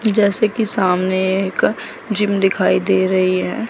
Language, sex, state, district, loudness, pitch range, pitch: Hindi, female, Chandigarh, Chandigarh, -17 LUFS, 185-215 Hz, 195 Hz